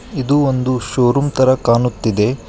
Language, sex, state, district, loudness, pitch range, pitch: Kannada, male, Karnataka, Koppal, -15 LUFS, 115-135 Hz, 130 Hz